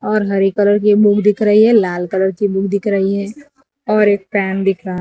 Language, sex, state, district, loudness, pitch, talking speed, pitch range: Hindi, female, Gujarat, Valsad, -14 LUFS, 205 Hz, 240 wpm, 195-210 Hz